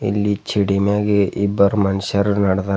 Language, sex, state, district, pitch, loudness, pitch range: Kannada, male, Karnataka, Bidar, 100 Hz, -18 LUFS, 100-105 Hz